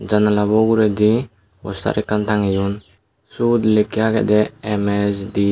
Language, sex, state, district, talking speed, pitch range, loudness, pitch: Chakma, male, Tripura, Dhalai, 110 wpm, 100-110 Hz, -18 LUFS, 105 Hz